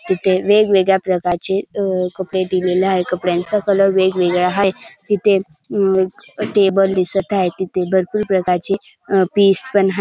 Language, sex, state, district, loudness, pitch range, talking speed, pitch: Marathi, male, Maharashtra, Dhule, -17 LUFS, 185-200 Hz, 140 wpm, 190 Hz